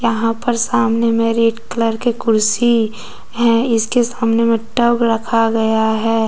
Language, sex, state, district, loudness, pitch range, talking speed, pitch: Hindi, female, Jharkhand, Deoghar, -16 LUFS, 225-235 Hz, 155 wpm, 230 Hz